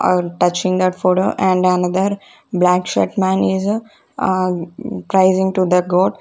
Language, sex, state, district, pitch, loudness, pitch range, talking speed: English, female, Punjab, Kapurthala, 185 Hz, -17 LUFS, 180-190 Hz, 135 wpm